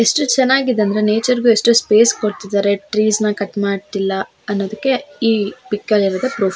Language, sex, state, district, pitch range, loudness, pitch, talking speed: Kannada, female, Karnataka, Shimoga, 200-235 Hz, -16 LUFS, 215 Hz, 165 wpm